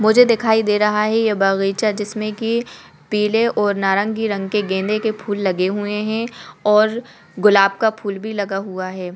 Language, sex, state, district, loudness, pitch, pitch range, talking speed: Hindi, female, Uttar Pradesh, Budaun, -18 LUFS, 210 Hz, 195-220 Hz, 190 wpm